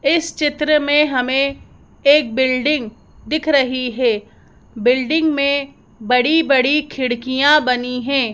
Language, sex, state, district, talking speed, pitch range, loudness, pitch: Hindi, female, Madhya Pradesh, Bhopal, 115 wpm, 250-295 Hz, -16 LUFS, 275 Hz